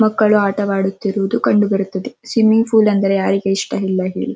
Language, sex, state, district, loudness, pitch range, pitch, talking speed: Kannada, female, Karnataka, Dharwad, -16 LUFS, 195-220 Hz, 200 Hz, 125 wpm